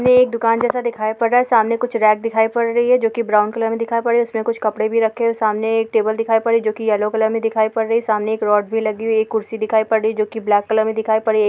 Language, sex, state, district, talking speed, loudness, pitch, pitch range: Hindi, female, Bihar, Bhagalpur, 350 wpm, -17 LUFS, 225 Hz, 220-230 Hz